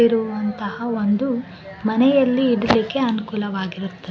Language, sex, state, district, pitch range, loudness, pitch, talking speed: Kannada, female, Karnataka, Bellary, 205-240 Hz, -20 LUFS, 220 Hz, 90 wpm